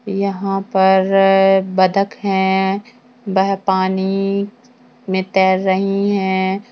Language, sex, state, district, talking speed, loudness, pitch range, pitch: Hindi, female, Uttarakhand, Tehri Garhwal, 90 wpm, -16 LUFS, 190-200 Hz, 195 Hz